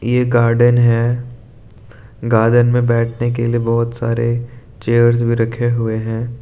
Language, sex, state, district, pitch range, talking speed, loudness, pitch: Hindi, male, Arunachal Pradesh, Lower Dibang Valley, 115-120 Hz, 140 wpm, -15 LUFS, 120 Hz